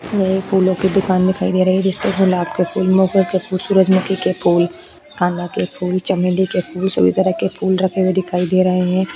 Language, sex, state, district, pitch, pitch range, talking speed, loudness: Hindi, female, Uttar Pradesh, Jyotiba Phule Nagar, 185 Hz, 180-190 Hz, 230 wpm, -17 LUFS